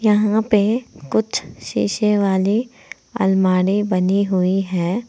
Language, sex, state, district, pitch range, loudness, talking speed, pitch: Hindi, female, Uttar Pradesh, Saharanpur, 185-215 Hz, -18 LUFS, 105 wpm, 200 Hz